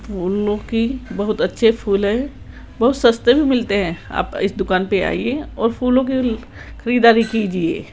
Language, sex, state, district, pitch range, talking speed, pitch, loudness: Hindi, female, Rajasthan, Jaipur, 200-245 Hz, 160 wpm, 225 Hz, -18 LUFS